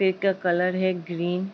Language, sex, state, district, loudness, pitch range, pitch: Hindi, female, Uttar Pradesh, Ghazipur, -25 LUFS, 175-190 Hz, 185 Hz